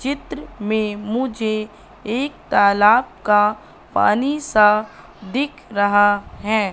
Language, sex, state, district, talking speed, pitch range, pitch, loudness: Hindi, female, Madhya Pradesh, Katni, 100 wpm, 205-235 Hz, 215 Hz, -18 LUFS